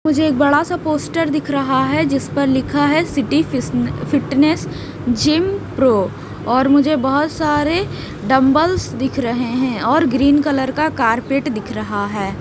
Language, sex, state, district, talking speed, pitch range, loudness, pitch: Hindi, female, Himachal Pradesh, Shimla, 155 wpm, 260-305 Hz, -17 LUFS, 285 Hz